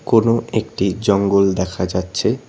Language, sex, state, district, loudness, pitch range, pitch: Bengali, male, West Bengal, Cooch Behar, -18 LUFS, 95-110 Hz, 100 Hz